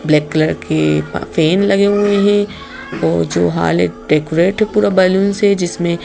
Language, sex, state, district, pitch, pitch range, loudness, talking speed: Hindi, female, Madhya Pradesh, Bhopal, 175 Hz, 150-200 Hz, -14 LUFS, 170 wpm